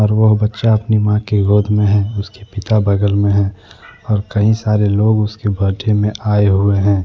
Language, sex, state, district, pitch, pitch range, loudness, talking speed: Hindi, male, Jharkhand, Deoghar, 105 Hz, 100-105 Hz, -15 LUFS, 205 wpm